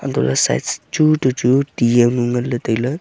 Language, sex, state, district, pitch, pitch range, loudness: Wancho, male, Arunachal Pradesh, Longding, 120 Hz, 105-130 Hz, -17 LUFS